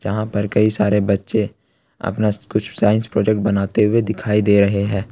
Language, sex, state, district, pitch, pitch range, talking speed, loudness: Hindi, male, Jharkhand, Ranchi, 105 Hz, 100-110 Hz, 175 wpm, -18 LUFS